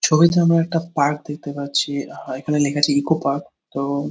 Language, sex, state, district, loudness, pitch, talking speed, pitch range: Bengali, male, West Bengal, Kolkata, -20 LUFS, 145 Hz, 205 wpm, 140-160 Hz